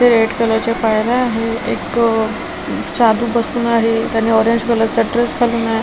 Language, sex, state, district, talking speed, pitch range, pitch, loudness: Marathi, female, Maharashtra, Washim, 165 wpm, 225-235 Hz, 230 Hz, -16 LUFS